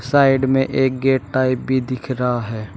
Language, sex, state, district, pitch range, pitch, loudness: Hindi, male, Uttar Pradesh, Shamli, 125-135 Hz, 130 Hz, -18 LUFS